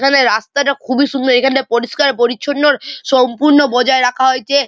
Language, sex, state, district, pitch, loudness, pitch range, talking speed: Bengali, male, West Bengal, Malda, 265 Hz, -13 LUFS, 250-285 Hz, 140 wpm